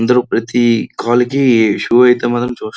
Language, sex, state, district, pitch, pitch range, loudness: Telugu, male, Andhra Pradesh, Srikakulam, 120 Hz, 115-125 Hz, -13 LUFS